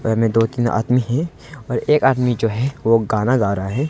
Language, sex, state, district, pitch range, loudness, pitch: Hindi, male, Arunachal Pradesh, Longding, 115-130 Hz, -18 LUFS, 120 Hz